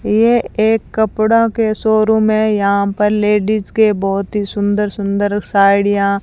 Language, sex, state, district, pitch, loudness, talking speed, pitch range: Hindi, female, Rajasthan, Bikaner, 210 Hz, -14 LUFS, 155 wpm, 200-220 Hz